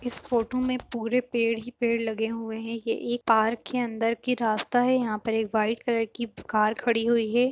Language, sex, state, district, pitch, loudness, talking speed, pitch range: Hindi, female, Uttar Pradesh, Jyotiba Phule Nagar, 230 Hz, -26 LUFS, 230 wpm, 225-245 Hz